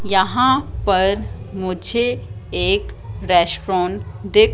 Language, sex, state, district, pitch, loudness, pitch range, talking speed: Hindi, female, Madhya Pradesh, Katni, 185 Hz, -19 LUFS, 170-210 Hz, 80 wpm